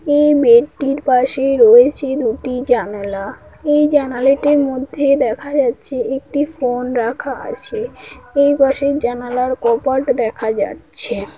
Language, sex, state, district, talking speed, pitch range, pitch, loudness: Bengali, female, West Bengal, Paschim Medinipur, 115 wpm, 245-285 Hz, 265 Hz, -16 LUFS